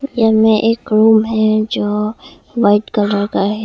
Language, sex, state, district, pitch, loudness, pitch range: Hindi, female, Arunachal Pradesh, Longding, 215 Hz, -14 LUFS, 210-225 Hz